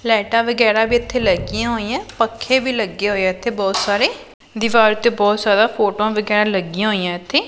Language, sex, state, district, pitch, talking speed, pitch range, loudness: Punjabi, female, Punjab, Pathankot, 215 Hz, 175 wpm, 205-230 Hz, -17 LUFS